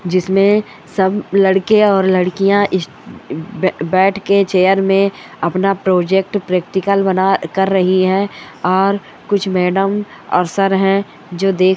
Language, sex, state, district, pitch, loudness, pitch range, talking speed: Hindi, female, Goa, North and South Goa, 190 Hz, -15 LUFS, 185-195 Hz, 115 wpm